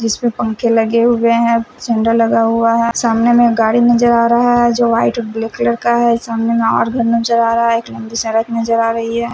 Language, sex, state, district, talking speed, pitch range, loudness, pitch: Hindi, male, Punjab, Fazilka, 235 wpm, 230-235 Hz, -14 LUFS, 230 Hz